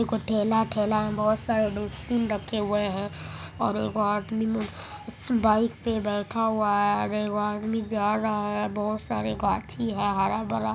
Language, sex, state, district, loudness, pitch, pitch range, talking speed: Maithili, male, Bihar, Supaul, -27 LUFS, 210 Hz, 210-220 Hz, 160 wpm